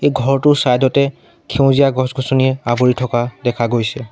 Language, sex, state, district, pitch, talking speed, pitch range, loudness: Assamese, male, Assam, Sonitpur, 130 Hz, 130 wpm, 120-135 Hz, -15 LUFS